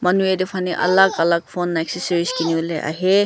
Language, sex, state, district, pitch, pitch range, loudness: Nagamese, female, Nagaland, Kohima, 180 Hz, 165-185 Hz, -19 LUFS